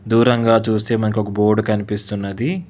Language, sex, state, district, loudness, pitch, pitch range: Telugu, male, Telangana, Hyderabad, -18 LUFS, 110 Hz, 105-115 Hz